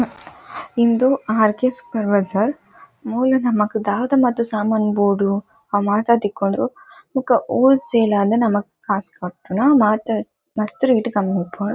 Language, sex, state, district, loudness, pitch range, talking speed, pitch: Tulu, female, Karnataka, Dakshina Kannada, -19 LUFS, 205-250 Hz, 135 wpm, 220 Hz